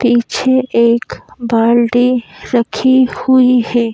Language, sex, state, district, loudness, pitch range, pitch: Hindi, female, Madhya Pradesh, Bhopal, -12 LUFS, 235-250 Hz, 240 Hz